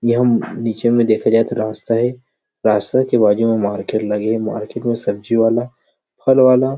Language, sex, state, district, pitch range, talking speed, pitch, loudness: Chhattisgarhi, male, Chhattisgarh, Rajnandgaon, 110-120 Hz, 195 wpm, 115 Hz, -17 LUFS